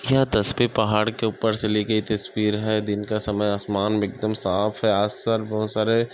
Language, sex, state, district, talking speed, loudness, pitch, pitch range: Hindi, male, Chhattisgarh, Sukma, 235 wpm, -22 LUFS, 110 Hz, 105-110 Hz